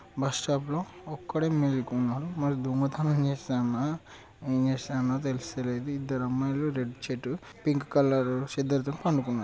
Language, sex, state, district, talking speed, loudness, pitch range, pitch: Telugu, male, Telangana, Karimnagar, 135 wpm, -29 LUFS, 130-145 Hz, 135 Hz